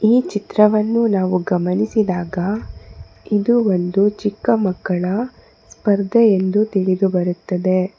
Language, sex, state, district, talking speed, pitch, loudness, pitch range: Kannada, female, Karnataka, Bangalore, 90 wpm, 200 Hz, -18 LUFS, 185-215 Hz